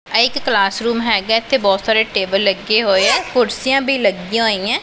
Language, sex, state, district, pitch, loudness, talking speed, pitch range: Punjabi, female, Punjab, Pathankot, 225 Hz, -15 LUFS, 225 wpm, 195-245 Hz